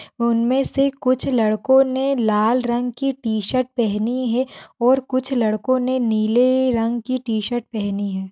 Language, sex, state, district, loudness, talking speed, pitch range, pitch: Hindi, female, Uttar Pradesh, Hamirpur, -19 LUFS, 150 wpm, 220-255 Hz, 245 Hz